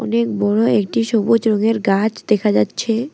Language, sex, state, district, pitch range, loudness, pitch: Bengali, female, West Bengal, Alipurduar, 210-230 Hz, -17 LUFS, 220 Hz